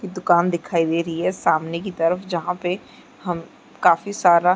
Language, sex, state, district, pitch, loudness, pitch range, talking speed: Hindi, female, Chhattisgarh, Bastar, 175 Hz, -21 LUFS, 170-185 Hz, 170 wpm